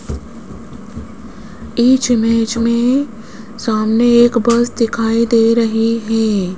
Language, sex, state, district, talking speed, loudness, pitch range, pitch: Hindi, female, Rajasthan, Jaipur, 90 wpm, -14 LUFS, 225-235 Hz, 230 Hz